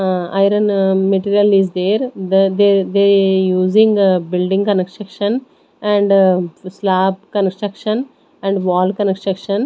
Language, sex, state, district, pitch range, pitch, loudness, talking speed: English, female, Maharashtra, Gondia, 190-205 Hz, 195 Hz, -15 LUFS, 110 wpm